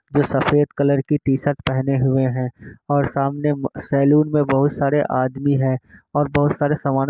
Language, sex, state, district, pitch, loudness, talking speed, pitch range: Hindi, male, Bihar, Kishanganj, 140 Hz, -19 LUFS, 175 wpm, 135-145 Hz